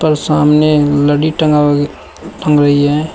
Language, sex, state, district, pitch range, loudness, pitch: Hindi, male, Uttar Pradesh, Shamli, 145-155 Hz, -12 LUFS, 150 Hz